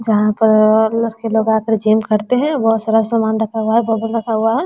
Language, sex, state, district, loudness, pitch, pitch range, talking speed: Hindi, female, Bihar, West Champaran, -15 LUFS, 220 Hz, 220-225 Hz, 230 wpm